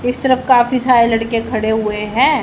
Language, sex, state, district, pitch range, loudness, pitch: Hindi, female, Haryana, Jhajjar, 220-255 Hz, -14 LUFS, 235 Hz